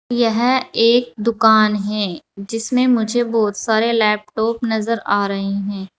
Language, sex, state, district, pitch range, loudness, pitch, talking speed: Hindi, female, Uttar Pradesh, Saharanpur, 210-235 Hz, -17 LUFS, 220 Hz, 130 wpm